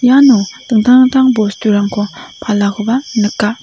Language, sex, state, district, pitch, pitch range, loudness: Garo, female, Meghalaya, South Garo Hills, 220 Hz, 210-255 Hz, -12 LUFS